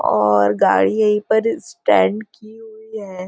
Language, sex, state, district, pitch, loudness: Hindi, female, Maharashtra, Nagpur, 210 Hz, -16 LUFS